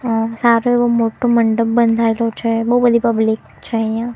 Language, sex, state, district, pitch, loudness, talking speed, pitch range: Gujarati, female, Gujarat, Gandhinagar, 230 Hz, -16 LUFS, 175 wpm, 225-235 Hz